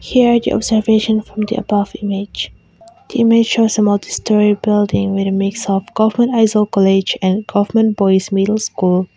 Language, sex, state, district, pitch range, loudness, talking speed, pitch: English, female, Mizoram, Aizawl, 195-225 Hz, -15 LUFS, 165 wpm, 210 Hz